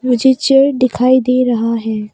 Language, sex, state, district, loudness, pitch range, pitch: Hindi, female, Arunachal Pradesh, Papum Pare, -13 LUFS, 230-260 Hz, 255 Hz